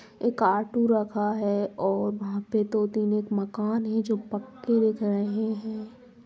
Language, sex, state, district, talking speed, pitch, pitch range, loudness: Angika, female, Bihar, Supaul, 165 wpm, 215 Hz, 205-225 Hz, -27 LUFS